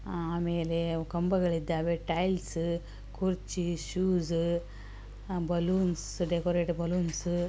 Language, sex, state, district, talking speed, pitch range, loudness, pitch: Kannada, female, Karnataka, Belgaum, 80 wpm, 165-175 Hz, -31 LUFS, 170 Hz